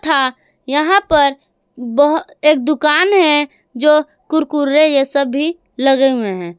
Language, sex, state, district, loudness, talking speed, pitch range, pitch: Hindi, female, Jharkhand, Garhwa, -13 LUFS, 125 wpm, 270-305 Hz, 295 Hz